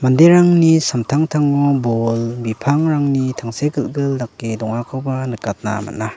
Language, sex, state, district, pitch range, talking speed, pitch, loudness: Garo, male, Meghalaya, West Garo Hills, 115-145 Hz, 85 wpm, 130 Hz, -17 LUFS